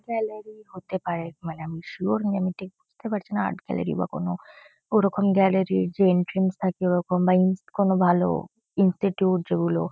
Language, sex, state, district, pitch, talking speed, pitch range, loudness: Bengali, female, West Bengal, Kolkata, 190 Hz, 180 wpm, 180-200 Hz, -24 LUFS